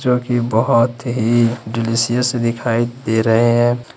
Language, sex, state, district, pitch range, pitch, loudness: Hindi, male, Jharkhand, Ranchi, 115-120 Hz, 120 Hz, -16 LUFS